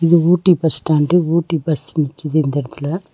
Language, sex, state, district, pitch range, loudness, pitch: Tamil, female, Tamil Nadu, Nilgiris, 150-170 Hz, -16 LUFS, 160 Hz